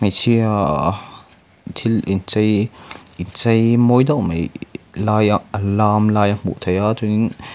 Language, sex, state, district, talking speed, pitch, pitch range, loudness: Mizo, male, Mizoram, Aizawl, 145 wpm, 105 Hz, 100-115 Hz, -17 LUFS